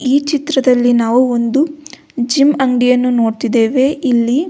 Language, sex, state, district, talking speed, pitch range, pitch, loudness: Kannada, female, Karnataka, Belgaum, 105 wpm, 240-280 Hz, 255 Hz, -13 LUFS